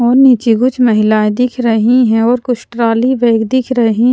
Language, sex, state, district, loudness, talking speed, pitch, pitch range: Hindi, female, Punjab, Pathankot, -11 LUFS, 190 wpm, 240 Hz, 225-250 Hz